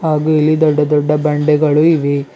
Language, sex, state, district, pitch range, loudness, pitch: Kannada, male, Karnataka, Bidar, 150-155 Hz, -13 LUFS, 150 Hz